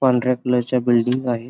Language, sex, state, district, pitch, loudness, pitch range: Marathi, male, Maharashtra, Pune, 125 Hz, -19 LUFS, 120-125 Hz